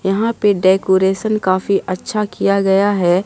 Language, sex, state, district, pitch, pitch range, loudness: Hindi, female, Bihar, Katihar, 195 Hz, 190-205 Hz, -15 LUFS